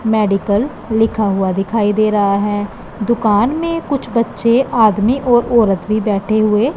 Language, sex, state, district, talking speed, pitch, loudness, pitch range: Hindi, female, Punjab, Pathankot, 150 wpm, 215 Hz, -15 LUFS, 205-235 Hz